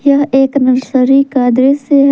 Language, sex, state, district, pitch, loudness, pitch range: Hindi, female, Jharkhand, Ranchi, 270 Hz, -11 LUFS, 255-280 Hz